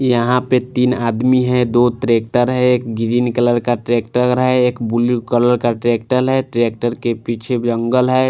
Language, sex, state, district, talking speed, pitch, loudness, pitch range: Hindi, male, Punjab, Fazilka, 180 wpm, 120 Hz, -16 LUFS, 120-125 Hz